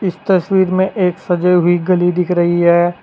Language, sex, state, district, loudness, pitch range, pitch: Hindi, male, Uttar Pradesh, Saharanpur, -14 LUFS, 175-185 Hz, 180 Hz